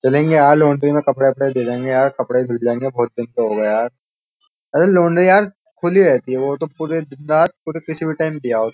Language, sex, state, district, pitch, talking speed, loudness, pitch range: Hindi, male, Uttar Pradesh, Jyotiba Phule Nagar, 140 Hz, 240 wpm, -16 LUFS, 125-160 Hz